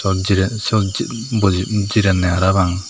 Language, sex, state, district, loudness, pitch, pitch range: Chakma, male, Tripura, Dhalai, -17 LUFS, 95 Hz, 95-105 Hz